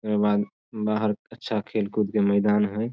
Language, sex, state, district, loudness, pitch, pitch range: Maithili, male, Bihar, Samastipur, -25 LUFS, 105 Hz, 105-110 Hz